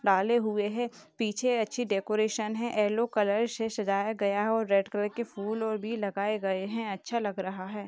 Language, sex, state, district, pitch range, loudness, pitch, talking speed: Hindi, female, Uttar Pradesh, Jalaun, 200-225 Hz, -30 LUFS, 215 Hz, 205 wpm